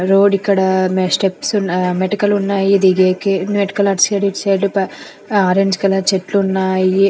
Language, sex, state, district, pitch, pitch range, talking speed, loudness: Telugu, female, Andhra Pradesh, Anantapur, 195 Hz, 190-200 Hz, 170 wpm, -15 LUFS